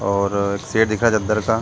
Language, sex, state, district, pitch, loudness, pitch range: Hindi, male, Uttar Pradesh, Jalaun, 110 Hz, -19 LUFS, 100-110 Hz